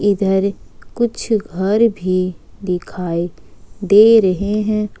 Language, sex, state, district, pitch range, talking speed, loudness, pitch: Hindi, female, Jharkhand, Ranchi, 185-210 Hz, 95 wpm, -16 LUFS, 200 Hz